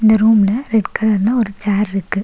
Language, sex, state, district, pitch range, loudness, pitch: Tamil, female, Tamil Nadu, Nilgiris, 200-220 Hz, -15 LUFS, 215 Hz